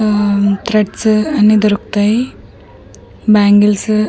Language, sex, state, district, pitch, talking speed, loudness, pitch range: Telugu, female, Andhra Pradesh, Manyam, 210 Hz, 90 wpm, -12 LUFS, 200-215 Hz